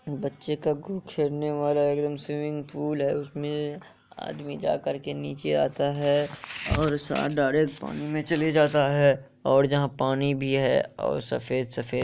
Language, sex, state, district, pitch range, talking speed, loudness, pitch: Hindi, male, Bihar, Kishanganj, 140-150 Hz, 175 wpm, -26 LUFS, 145 Hz